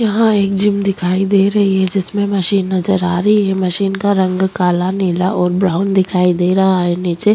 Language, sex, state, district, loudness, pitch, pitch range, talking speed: Rajasthani, female, Rajasthan, Nagaur, -15 LUFS, 190 Hz, 180-200 Hz, 210 wpm